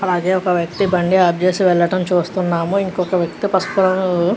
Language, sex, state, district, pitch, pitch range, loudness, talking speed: Telugu, female, Andhra Pradesh, Krishna, 185 Hz, 175-185 Hz, -17 LUFS, 150 wpm